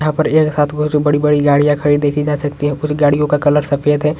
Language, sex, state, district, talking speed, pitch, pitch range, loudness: Hindi, male, Uttarakhand, Uttarkashi, 240 wpm, 150 Hz, 145-150 Hz, -14 LUFS